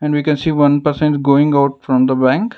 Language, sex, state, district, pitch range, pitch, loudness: English, male, Karnataka, Bangalore, 140-150 Hz, 145 Hz, -14 LUFS